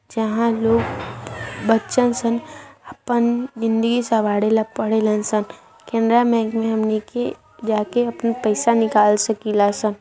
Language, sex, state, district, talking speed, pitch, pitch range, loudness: Bhojpuri, male, Bihar, Saran, 130 wpm, 225 Hz, 215-235 Hz, -19 LUFS